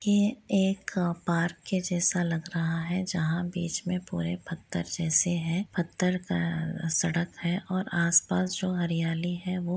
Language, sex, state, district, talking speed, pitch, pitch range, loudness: Hindi, female, Jharkhand, Jamtara, 155 wpm, 175 Hz, 170-185 Hz, -28 LUFS